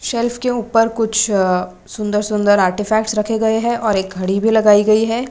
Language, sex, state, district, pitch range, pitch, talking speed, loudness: Hindi, female, Maharashtra, Gondia, 205-225 Hz, 220 Hz, 190 wpm, -16 LUFS